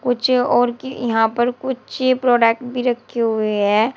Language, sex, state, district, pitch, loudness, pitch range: Hindi, female, Uttar Pradesh, Shamli, 245 Hz, -18 LUFS, 230-255 Hz